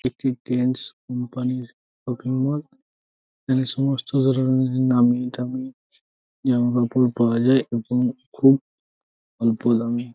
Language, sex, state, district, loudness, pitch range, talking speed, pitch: Bengali, male, West Bengal, Jhargram, -22 LUFS, 120-130 Hz, 105 wpm, 125 Hz